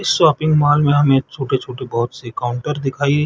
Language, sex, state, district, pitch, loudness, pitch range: Hindi, male, Chhattisgarh, Bilaspur, 135 Hz, -17 LUFS, 125-145 Hz